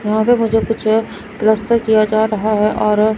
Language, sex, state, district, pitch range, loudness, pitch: Hindi, female, Chandigarh, Chandigarh, 215-225 Hz, -15 LUFS, 220 Hz